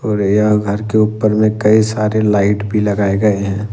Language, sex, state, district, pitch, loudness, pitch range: Hindi, male, Jharkhand, Ranchi, 105 Hz, -14 LUFS, 100-110 Hz